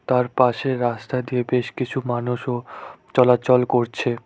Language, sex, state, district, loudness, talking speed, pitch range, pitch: Bengali, male, West Bengal, Cooch Behar, -21 LUFS, 125 wpm, 120-125 Hz, 125 Hz